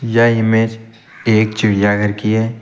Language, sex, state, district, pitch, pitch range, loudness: Hindi, male, Uttar Pradesh, Lucknow, 110 Hz, 110-115 Hz, -15 LUFS